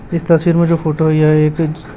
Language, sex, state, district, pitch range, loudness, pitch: Hindi, male, Chhattisgarh, Raipur, 155-170 Hz, -13 LUFS, 160 Hz